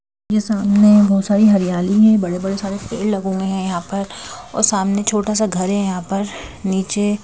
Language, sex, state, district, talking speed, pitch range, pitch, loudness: Hindi, female, Madhya Pradesh, Bhopal, 200 wpm, 190-210 Hz, 200 Hz, -17 LUFS